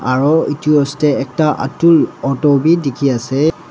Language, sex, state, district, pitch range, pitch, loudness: Nagamese, male, Nagaland, Dimapur, 140-155 Hz, 145 Hz, -14 LUFS